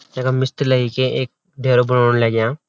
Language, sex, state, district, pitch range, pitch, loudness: Garhwali, male, Uttarakhand, Uttarkashi, 120-130 Hz, 130 Hz, -17 LUFS